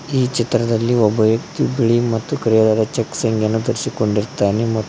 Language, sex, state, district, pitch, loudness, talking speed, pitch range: Kannada, male, Karnataka, Koppal, 115 Hz, -18 LUFS, 145 wpm, 110-120 Hz